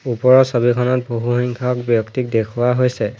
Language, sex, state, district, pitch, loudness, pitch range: Assamese, male, Assam, Hailakandi, 120 Hz, -17 LUFS, 120-125 Hz